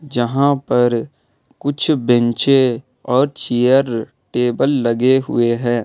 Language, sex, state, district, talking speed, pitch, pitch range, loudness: Hindi, male, Jharkhand, Ranchi, 100 wpm, 125 Hz, 120-140 Hz, -16 LUFS